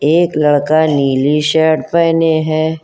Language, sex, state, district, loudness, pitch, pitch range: Hindi, female, Uttar Pradesh, Hamirpur, -13 LUFS, 155 Hz, 150-160 Hz